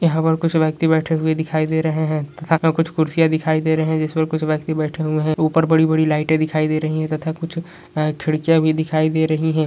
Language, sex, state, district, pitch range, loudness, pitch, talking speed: Hindi, male, Jharkhand, Jamtara, 155-160 Hz, -19 LUFS, 160 Hz, 235 wpm